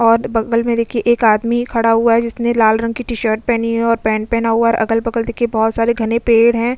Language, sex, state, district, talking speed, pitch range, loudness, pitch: Hindi, female, Goa, North and South Goa, 265 wpm, 225-235 Hz, -15 LUFS, 230 Hz